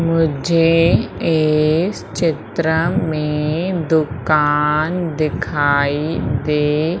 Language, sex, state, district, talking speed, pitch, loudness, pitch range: Hindi, female, Madhya Pradesh, Umaria, 60 wpm, 155 Hz, -17 LUFS, 150-165 Hz